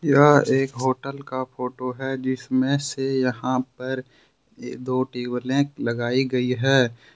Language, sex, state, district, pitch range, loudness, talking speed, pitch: Hindi, male, Jharkhand, Ranchi, 125-135 Hz, -23 LUFS, 135 wpm, 130 Hz